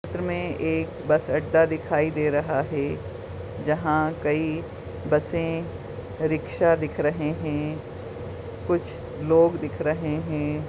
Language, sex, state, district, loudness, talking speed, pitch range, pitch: Hindi, male, Chhattisgarh, Bastar, -25 LUFS, 120 wpm, 125-160 Hz, 150 Hz